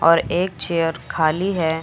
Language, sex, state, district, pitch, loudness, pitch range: Hindi, female, Uttar Pradesh, Lucknow, 165 Hz, -20 LUFS, 160-175 Hz